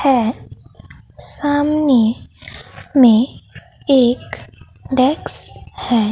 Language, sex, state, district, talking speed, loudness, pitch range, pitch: Hindi, female, Bihar, Katihar, 60 wpm, -15 LUFS, 235-285 Hz, 260 Hz